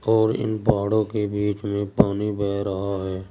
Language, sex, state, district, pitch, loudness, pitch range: Hindi, male, Uttar Pradesh, Saharanpur, 100 Hz, -23 LUFS, 100-110 Hz